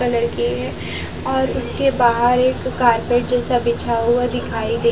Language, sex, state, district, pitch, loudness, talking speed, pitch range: Hindi, female, Bihar, West Champaran, 235 Hz, -18 LUFS, 170 wpm, 225-245 Hz